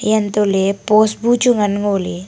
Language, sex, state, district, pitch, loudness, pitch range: Wancho, female, Arunachal Pradesh, Longding, 210 Hz, -15 LUFS, 200-220 Hz